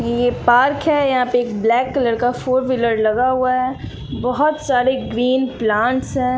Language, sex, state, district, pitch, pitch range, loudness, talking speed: Hindi, female, Bihar, West Champaran, 255 Hz, 240-260 Hz, -17 LUFS, 180 wpm